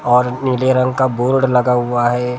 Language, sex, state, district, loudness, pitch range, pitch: Hindi, male, Maharashtra, Gondia, -15 LUFS, 125-130 Hz, 125 Hz